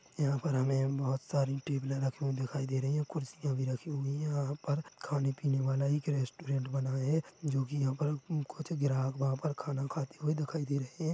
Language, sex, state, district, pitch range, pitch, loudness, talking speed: Hindi, male, Chhattisgarh, Korba, 135-150 Hz, 140 Hz, -34 LUFS, 225 wpm